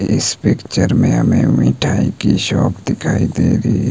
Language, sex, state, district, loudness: Hindi, male, Himachal Pradesh, Shimla, -15 LUFS